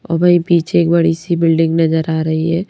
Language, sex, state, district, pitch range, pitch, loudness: Hindi, female, Madhya Pradesh, Bhopal, 165-170 Hz, 165 Hz, -14 LUFS